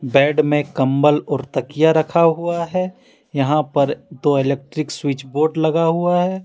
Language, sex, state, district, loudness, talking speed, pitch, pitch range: Hindi, male, Jharkhand, Deoghar, -18 LUFS, 160 wpm, 150 Hz, 140-165 Hz